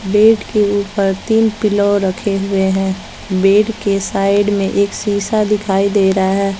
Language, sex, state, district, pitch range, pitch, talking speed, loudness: Hindi, female, Bihar, West Champaran, 195-210 Hz, 200 Hz, 155 wpm, -15 LUFS